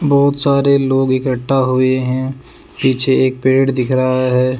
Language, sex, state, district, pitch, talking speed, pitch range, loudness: Hindi, male, Rajasthan, Jaipur, 130 Hz, 155 wpm, 130-135 Hz, -14 LUFS